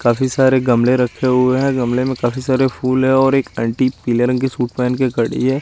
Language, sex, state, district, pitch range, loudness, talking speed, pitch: Hindi, male, Chandigarh, Chandigarh, 125-130 Hz, -16 LUFS, 245 wpm, 130 Hz